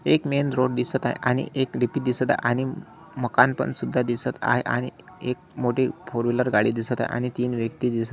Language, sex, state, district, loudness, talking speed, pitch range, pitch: Marathi, male, Maharashtra, Solapur, -24 LUFS, 220 wpm, 120-130 Hz, 125 Hz